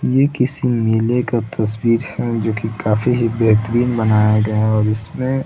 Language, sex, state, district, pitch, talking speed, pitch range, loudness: Hindi, male, Bihar, Saran, 115 Hz, 175 wpm, 110-125 Hz, -17 LUFS